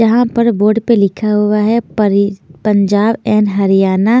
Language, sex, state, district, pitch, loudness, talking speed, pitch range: Hindi, female, Chandigarh, Chandigarh, 210 Hz, -13 LUFS, 155 wpm, 200-225 Hz